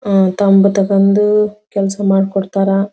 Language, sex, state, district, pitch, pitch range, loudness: Kannada, female, Karnataka, Belgaum, 195 Hz, 195-205 Hz, -13 LUFS